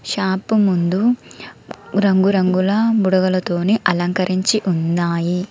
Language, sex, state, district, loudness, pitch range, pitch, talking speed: Telugu, female, Telangana, Komaram Bheem, -17 LUFS, 180-205 Hz, 185 Hz, 65 wpm